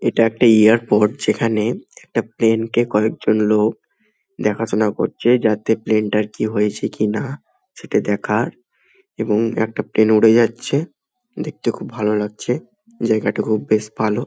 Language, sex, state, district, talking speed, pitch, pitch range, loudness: Bengali, male, West Bengal, Malda, 120 wpm, 110 Hz, 105-120 Hz, -18 LUFS